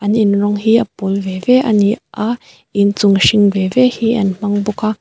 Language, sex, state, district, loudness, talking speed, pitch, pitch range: Mizo, female, Mizoram, Aizawl, -14 LUFS, 240 wpm, 205 Hz, 200-225 Hz